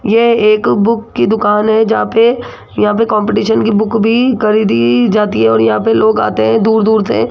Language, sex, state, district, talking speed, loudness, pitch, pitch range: Hindi, female, Rajasthan, Jaipur, 215 wpm, -11 LUFS, 215 Hz, 200-225 Hz